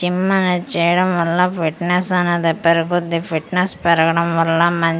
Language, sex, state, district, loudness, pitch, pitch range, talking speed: Telugu, female, Andhra Pradesh, Manyam, -17 LUFS, 170 Hz, 165-180 Hz, 145 wpm